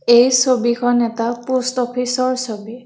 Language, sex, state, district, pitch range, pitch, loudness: Assamese, female, Assam, Kamrup Metropolitan, 235-255 Hz, 245 Hz, -17 LUFS